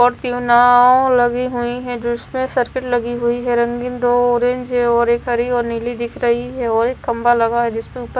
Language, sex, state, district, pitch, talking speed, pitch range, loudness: Hindi, female, Maharashtra, Gondia, 245 Hz, 220 wpm, 235-245 Hz, -17 LUFS